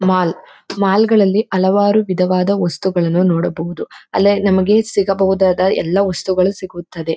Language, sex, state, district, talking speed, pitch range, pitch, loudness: Kannada, female, Karnataka, Mysore, 100 wpm, 180-200 Hz, 190 Hz, -15 LUFS